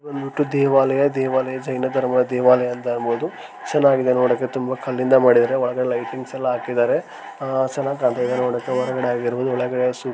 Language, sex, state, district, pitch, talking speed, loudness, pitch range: Kannada, male, Karnataka, Gulbarga, 130 Hz, 155 wpm, -20 LUFS, 125-135 Hz